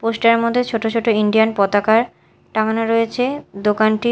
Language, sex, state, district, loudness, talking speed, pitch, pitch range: Bengali, female, Odisha, Malkangiri, -17 LUFS, 145 wpm, 225 Hz, 215-230 Hz